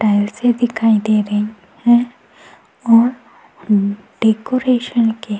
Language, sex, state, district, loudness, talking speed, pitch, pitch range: Hindi, female, Goa, North and South Goa, -16 LUFS, 110 wpm, 225 Hz, 210-240 Hz